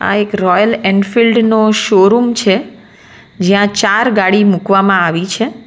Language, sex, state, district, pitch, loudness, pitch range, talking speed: Gujarati, female, Gujarat, Valsad, 205 Hz, -11 LUFS, 195-225 Hz, 140 wpm